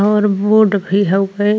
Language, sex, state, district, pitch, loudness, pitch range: Bhojpuri, female, Uttar Pradesh, Ghazipur, 205 Hz, -14 LUFS, 195-210 Hz